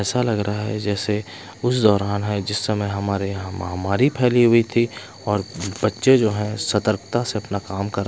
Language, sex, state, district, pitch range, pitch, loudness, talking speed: Hindi, male, Bihar, West Champaran, 100-115 Hz, 105 Hz, -21 LUFS, 185 wpm